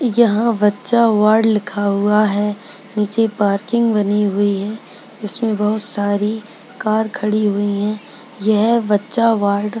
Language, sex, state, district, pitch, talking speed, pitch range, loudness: Hindi, female, Bihar, Purnia, 210 Hz, 135 wpm, 205-225 Hz, -17 LUFS